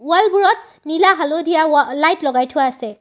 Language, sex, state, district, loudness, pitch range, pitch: Assamese, female, Assam, Sonitpur, -15 LUFS, 275-375 Hz, 315 Hz